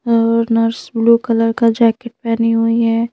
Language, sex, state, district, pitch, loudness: Hindi, female, Madhya Pradesh, Bhopal, 230 Hz, -15 LUFS